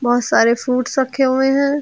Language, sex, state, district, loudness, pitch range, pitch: Hindi, female, Uttar Pradesh, Lucknow, -16 LUFS, 245-275 Hz, 260 Hz